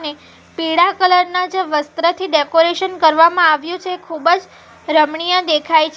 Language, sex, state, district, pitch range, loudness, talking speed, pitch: Gujarati, female, Gujarat, Valsad, 315-365 Hz, -15 LUFS, 150 wpm, 335 Hz